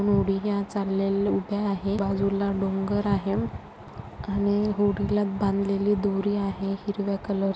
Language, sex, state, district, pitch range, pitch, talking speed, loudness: Marathi, female, Maharashtra, Sindhudurg, 195-205 Hz, 200 Hz, 120 wpm, -26 LUFS